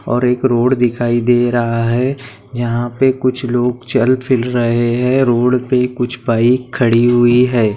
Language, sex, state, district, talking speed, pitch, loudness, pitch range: Bhojpuri, male, Bihar, Saran, 170 wpm, 120 Hz, -14 LUFS, 120-125 Hz